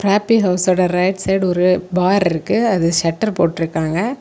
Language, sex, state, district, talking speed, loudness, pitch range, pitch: Tamil, female, Tamil Nadu, Kanyakumari, 140 wpm, -16 LUFS, 170-200 Hz, 185 Hz